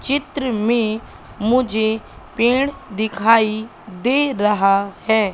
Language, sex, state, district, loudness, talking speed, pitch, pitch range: Hindi, female, Madhya Pradesh, Katni, -18 LUFS, 90 wpm, 220 Hz, 215-250 Hz